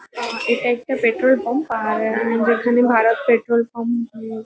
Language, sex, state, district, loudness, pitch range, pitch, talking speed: Bengali, female, West Bengal, Kolkata, -19 LUFS, 225-240 Hz, 235 Hz, 175 wpm